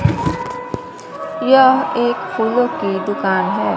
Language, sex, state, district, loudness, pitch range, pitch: Hindi, female, Bihar, West Champaran, -16 LUFS, 195-265 Hz, 240 Hz